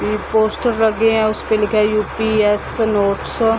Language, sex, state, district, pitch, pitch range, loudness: Hindi, female, Bihar, East Champaran, 220 Hz, 210-225 Hz, -17 LUFS